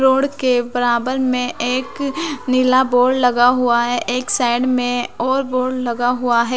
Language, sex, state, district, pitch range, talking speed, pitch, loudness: Hindi, female, Bihar, West Champaran, 245-260 Hz, 165 wpm, 250 Hz, -17 LUFS